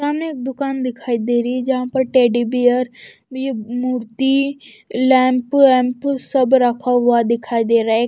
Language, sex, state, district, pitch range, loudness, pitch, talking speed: Hindi, female, Bihar, West Champaran, 240-265 Hz, -17 LUFS, 255 Hz, 165 wpm